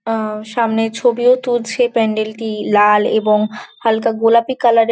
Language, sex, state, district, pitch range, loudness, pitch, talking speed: Bengali, female, West Bengal, Jhargram, 215-240 Hz, -15 LUFS, 225 Hz, 145 wpm